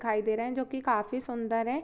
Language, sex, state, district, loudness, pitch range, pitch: Hindi, female, Jharkhand, Sahebganj, -31 LUFS, 225-255 Hz, 240 Hz